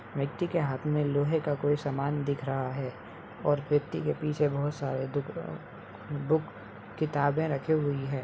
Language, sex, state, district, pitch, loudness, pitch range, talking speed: Hindi, male, Uttar Pradesh, Hamirpur, 145 Hz, -30 LUFS, 135-150 Hz, 160 wpm